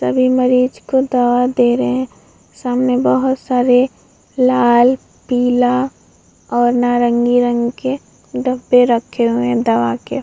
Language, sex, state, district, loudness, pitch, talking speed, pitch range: Hindi, female, Bihar, Vaishali, -15 LUFS, 245 Hz, 130 wpm, 240-255 Hz